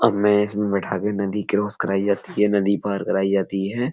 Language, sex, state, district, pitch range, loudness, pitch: Hindi, male, Uttar Pradesh, Etah, 100-105 Hz, -22 LUFS, 100 Hz